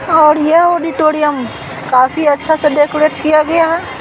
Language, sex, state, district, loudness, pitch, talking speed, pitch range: Hindi, female, Bihar, Patna, -12 LUFS, 305 Hz, 150 wpm, 295-320 Hz